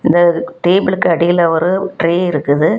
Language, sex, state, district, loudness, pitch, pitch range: Tamil, female, Tamil Nadu, Kanyakumari, -14 LUFS, 175 Hz, 165-180 Hz